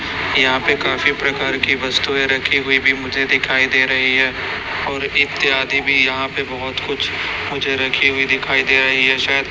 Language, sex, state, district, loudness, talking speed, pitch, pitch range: Hindi, male, Chhattisgarh, Raipur, -15 LUFS, 190 wpm, 135 Hz, 130-135 Hz